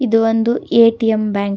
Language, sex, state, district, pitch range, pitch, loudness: Kannada, female, Karnataka, Dakshina Kannada, 215-230 Hz, 225 Hz, -15 LUFS